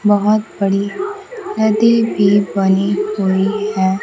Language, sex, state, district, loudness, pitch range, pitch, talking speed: Hindi, female, Bihar, Kaimur, -15 LUFS, 195-215 Hz, 205 Hz, 105 wpm